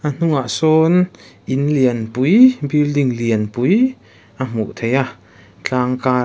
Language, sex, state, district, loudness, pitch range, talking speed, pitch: Mizo, male, Mizoram, Aizawl, -17 LUFS, 115-150 Hz, 145 wpm, 130 Hz